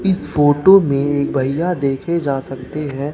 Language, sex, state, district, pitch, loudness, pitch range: Hindi, male, Bihar, Katihar, 145 Hz, -16 LUFS, 135-170 Hz